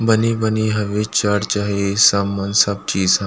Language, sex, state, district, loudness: Chhattisgarhi, male, Chhattisgarh, Rajnandgaon, -17 LUFS